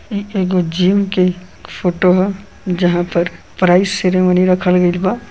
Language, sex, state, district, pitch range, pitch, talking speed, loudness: Bhojpuri, male, Uttar Pradesh, Gorakhpur, 180-195 Hz, 185 Hz, 145 wpm, -15 LUFS